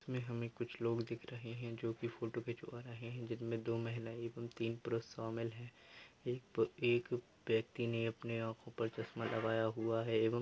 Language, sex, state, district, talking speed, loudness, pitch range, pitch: Hindi, male, Bihar, Purnia, 190 wpm, -41 LUFS, 115-120 Hz, 115 Hz